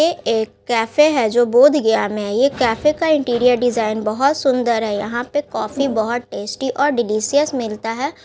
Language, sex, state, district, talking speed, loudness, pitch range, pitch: Hindi, female, Bihar, Gaya, 180 wpm, -17 LUFS, 225-280 Hz, 245 Hz